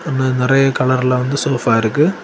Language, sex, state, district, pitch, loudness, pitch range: Tamil, male, Tamil Nadu, Kanyakumari, 130 Hz, -15 LUFS, 125-135 Hz